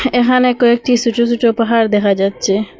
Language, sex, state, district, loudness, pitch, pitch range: Bengali, female, Assam, Hailakandi, -13 LUFS, 235 Hz, 215-245 Hz